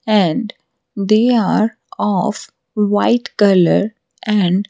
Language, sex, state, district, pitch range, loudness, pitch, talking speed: English, female, Odisha, Malkangiri, 200-220 Hz, -16 LUFS, 210 Hz, 90 wpm